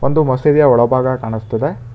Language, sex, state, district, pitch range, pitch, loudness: Kannada, male, Karnataka, Bangalore, 120-145 Hz, 130 Hz, -14 LUFS